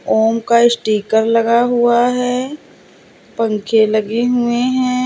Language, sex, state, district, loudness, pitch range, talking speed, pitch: Hindi, female, Uttar Pradesh, Lalitpur, -15 LUFS, 220-245 Hz, 120 wpm, 235 Hz